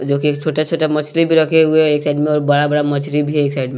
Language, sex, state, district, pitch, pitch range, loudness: Hindi, male, Bihar, West Champaran, 150 Hz, 145-155 Hz, -15 LUFS